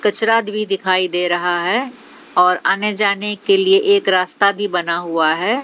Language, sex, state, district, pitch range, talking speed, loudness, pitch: Hindi, female, Haryana, Jhajjar, 180-225 Hz, 170 wpm, -16 LUFS, 200 Hz